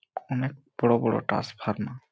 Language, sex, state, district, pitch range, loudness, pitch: Bengali, male, West Bengal, Malda, 115-130 Hz, -28 LUFS, 120 Hz